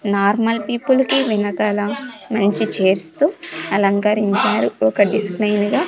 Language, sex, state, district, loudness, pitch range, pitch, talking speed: Telugu, female, Andhra Pradesh, Sri Satya Sai, -17 LUFS, 200-240 Hz, 210 Hz, 110 wpm